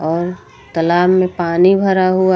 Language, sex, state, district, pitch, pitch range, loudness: Hindi, female, Uttar Pradesh, Lucknow, 180 Hz, 170-185 Hz, -14 LUFS